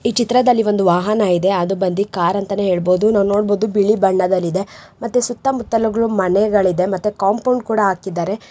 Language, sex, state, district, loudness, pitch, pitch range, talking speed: Kannada, female, Karnataka, Raichur, -17 LUFS, 200 Hz, 190-225 Hz, 155 wpm